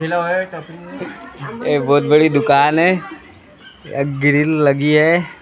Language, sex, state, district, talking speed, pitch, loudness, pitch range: Hindi, male, Maharashtra, Gondia, 90 wpm, 150 Hz, -15 LUFS, 145-170 Hz